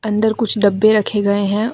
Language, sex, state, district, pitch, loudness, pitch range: Hindi, female, Jharkhand, Deoghar, 215 Hz, -15 LUFS, 205-220 Hz